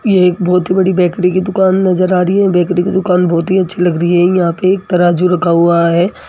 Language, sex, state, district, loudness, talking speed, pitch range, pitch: Hindi, female, Rajasthan, Jaipur, -12 LUFS, 275 wpm, 175-185 Hz, 180 Hz